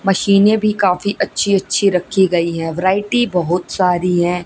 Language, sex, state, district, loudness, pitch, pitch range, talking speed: Hindi, female, Haryana, Jhajjar, -15 LUFS, 190 Hz, 180-200 Hz, 160 wpm